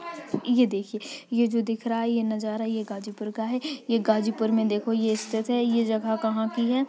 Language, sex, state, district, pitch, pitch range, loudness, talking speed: Hindi, female, Uttar Pradesh, Ghazipur, 225 Hz, 220-235 Hz, -26 LUFS, 220 wpm